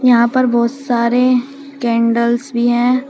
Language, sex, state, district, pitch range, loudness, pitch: Hindi, female, Uttar Pradesh, Shamli, 235-255 Hz, -15 LUFS, 245 Hz